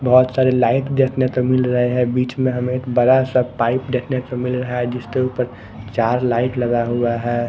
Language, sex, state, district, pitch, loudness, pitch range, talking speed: Hindi, male, Bihar, West Champaran, 125 Hz, -18 LUFS, 120-130 Hz, 210 wpm